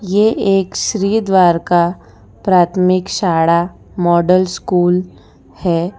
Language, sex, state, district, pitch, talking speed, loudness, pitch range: Hindi, female, Gujarat, Valsad, 180 Hz, 90 wpm, -14 LUFS, 170-195 Hz